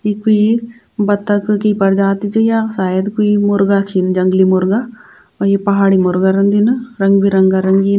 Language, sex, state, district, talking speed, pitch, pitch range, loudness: Garhwali, female, Uttarakhand, Tehri Garhwal, 160 wpm, 200 Hz, 195-210 Hz, -13 LUFS